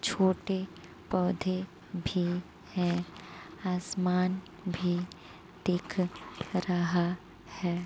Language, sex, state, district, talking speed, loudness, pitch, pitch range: Hindi, female, Uttar Pradesh, Muzaffarnagar, 70 wpm, -32 LUFS, 180 Hz, 175-185 Hz